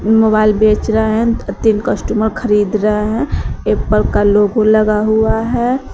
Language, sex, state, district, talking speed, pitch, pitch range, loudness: Hindi, female, Uttar Pradesh, Shamli, 150 wpm, 220 Hz, 210-220 Hz, -14 LUFS